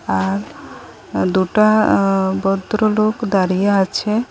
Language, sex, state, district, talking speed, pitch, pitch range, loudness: Bengali, female, Assam, Hailakandi, 85 wpm, 195 Hz, 185-215 Hz, -17 LUFS